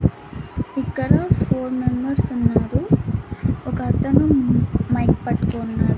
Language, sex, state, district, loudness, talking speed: Telugu, female, Andhra Pradesh, Annamaya, -20 LUFS, 90 wpm